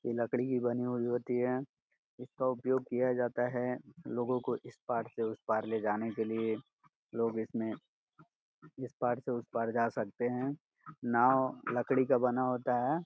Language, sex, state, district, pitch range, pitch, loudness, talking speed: Hindi, male, Uttar Pradesh, Gorakhpur, 115-125 Hz, 125 Hz, -34 LUFS, 190 wpm